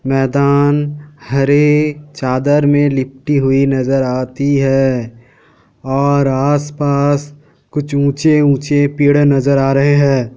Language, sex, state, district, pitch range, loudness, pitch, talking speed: Hindi, male, Bihar, Kishanganj, 135-145 Hz, -14 LUFS, 140 Hz, 105 wpm